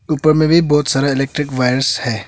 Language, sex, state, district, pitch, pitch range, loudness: Hindi, male, Arunachal Pradesh, Longding, 140 Hz, 130-155 Hz, -15 LUFS